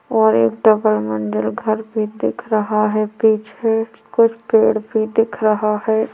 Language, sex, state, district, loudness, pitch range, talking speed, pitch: Hindi, female, Chhattisgarh, Korba, -17 LUFS, 215-220 Hz, 155 wpm, 215 Hz